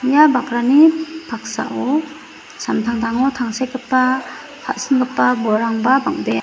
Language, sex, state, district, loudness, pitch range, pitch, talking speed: Garo, female, Meghalaya, West Garo Hills, -17 LUFS, 240-290 Hz, 255 Hz, 75 wpm